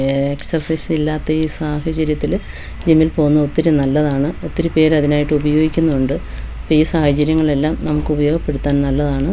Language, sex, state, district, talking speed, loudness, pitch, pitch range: Malayalam, female, Kerala, Wayanad, 115 wpm, -16 LUFS, 150 Hz, 145-160 Hz